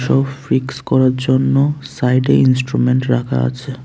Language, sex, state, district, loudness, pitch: Bengali, male, Tripura, West Tripura, -16 LUFS, 130 Hz